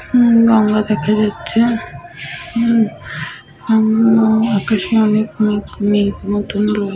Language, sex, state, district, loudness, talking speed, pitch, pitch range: Bengali, female, Jharkhand, Sahebganj, -15 LUFS, 70 wpm, 215 Hz, 210-225 Hz